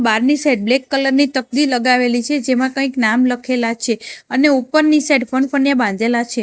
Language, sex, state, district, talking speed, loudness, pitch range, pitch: Gujarati, female, Gujarat, Gandhinagar, 175 wpm, -16 LUFS, 240-275 Hz, 255 Hz